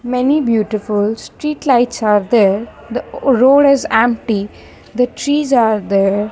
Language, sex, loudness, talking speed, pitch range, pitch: English, female, -14 LUFS, 140 wpm, 210-265 Hz, 230 Hz